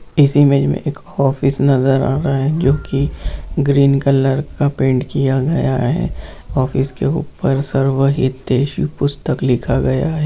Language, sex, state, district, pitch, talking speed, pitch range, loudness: Hindi, male, Bihar, Jamui, 140 Hz, 150 wpm, 135-145 Hz, -16 LUFS